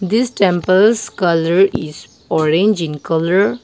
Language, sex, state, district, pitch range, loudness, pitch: English, female, Nagaland, Dimapur, 165-205 Hz, -15 LUFS, 185 Hz